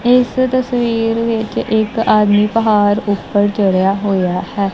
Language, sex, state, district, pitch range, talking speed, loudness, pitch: Punjabi, male, Punjab, Kapurthala, 205-230 Hz, 125 wpm, -15 LUFS, 215 Hz